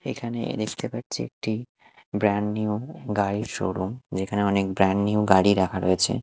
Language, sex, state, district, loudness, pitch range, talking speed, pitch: Bengali, male, Odisha, Malkangiri, -25 LUFS, 95-110 Hz, 155 wpm, 105 Hz